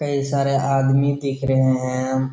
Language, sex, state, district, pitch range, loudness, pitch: Hindi, male, Bihar, Jamui, 130-140 Hz, -20 LUFS, 135 Hz